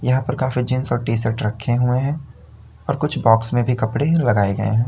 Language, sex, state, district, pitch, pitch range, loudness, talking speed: Hindi, male, Uttar Pradesh, Lalitpur, 125 Hz, 115-130 Hz, -19 LUFS, 235 wpm